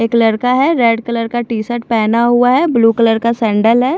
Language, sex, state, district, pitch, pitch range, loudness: Hindi, female, Punjab, Fazilka, 235 Hz, 225-240 Hz, -13 LUFS